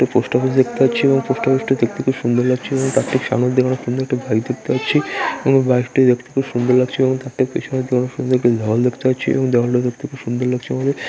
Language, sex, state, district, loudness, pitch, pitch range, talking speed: Bengali, male, West Bengal, Dakshin Dinajpur, -18 LUFS, 130 Hz, 125-135 Hz, 285 wpm